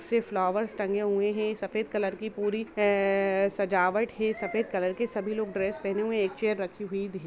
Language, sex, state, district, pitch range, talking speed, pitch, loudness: Hindi, female, Jharkhand, Jamtara, 195-215 Hz, 205 wpm, 205 Hz, -29 LUFS